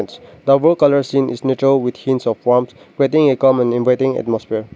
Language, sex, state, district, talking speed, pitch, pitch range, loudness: English, male, Nagaland, Dimapur, 150 wpm, 130 Hz, 125-135 Hz, -16 LUFS